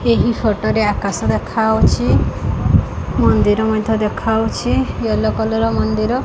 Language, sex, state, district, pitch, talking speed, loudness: Odia, female, Odisha, Khordha, 210 Hz, 125 wpm, -16 LUFS